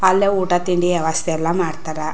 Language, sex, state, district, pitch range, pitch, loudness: Kannada, female, Karnataka, Chamarajanagar, 160-185 Hz, 175 Hz, -19 LUFS